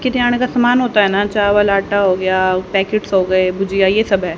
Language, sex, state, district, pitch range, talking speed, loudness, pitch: Hindi, female, Haryana, Rohtak, 190-215 Hz, 235 wpm, -15 LUFS, 200 Hz